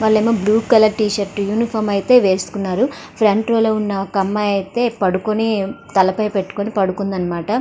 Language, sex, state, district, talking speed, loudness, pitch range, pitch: Telugu, female, Andhra Pradesh, Srikakulam, 155 wpm, -17 LUFS, 195-220 Hz, 210 Hz